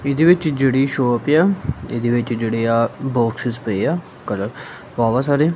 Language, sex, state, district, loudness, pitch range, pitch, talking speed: Punjabi, male, Punjab, Kapurthala, -19 LUFS, 115-150 Hz, 130 Hz, 175 wpm